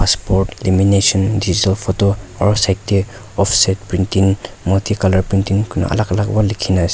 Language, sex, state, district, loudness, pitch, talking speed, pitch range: Nagamese, male, Nagaland, Kohima, -16 LUFS, 95 Hz, 140 wpm, 95-100 Hz